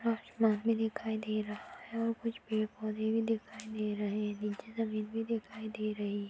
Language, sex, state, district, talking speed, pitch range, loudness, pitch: Hindi, female, Chhattisgarh, Jashpur, 200 wpm, 210-225 Hz, -36 LUFS, 215 Hz